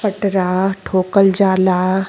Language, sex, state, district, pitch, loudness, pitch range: Bhojpuri, female, Uttar Pradesh, Gorakhpur, 190 Hz, -15 LUFS, 185-195 Hz